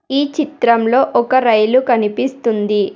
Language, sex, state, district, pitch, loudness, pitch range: Telugu, female, Telangana, Hyderabad, 240 Hz, -14 LUFS, 225-265 Hz